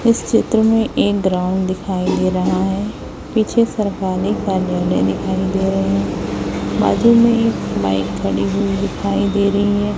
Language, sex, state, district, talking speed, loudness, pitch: Hindi, female, Chhattisgarh, Raipur, 150 wpm, -17 LUFS, 180 Hz